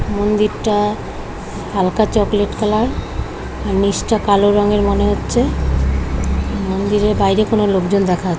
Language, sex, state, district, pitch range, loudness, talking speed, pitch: Bengali, female, West Bengal, Kolkata, 185-210 Hz, -17 LUFS, 115 wpm, 205 Hz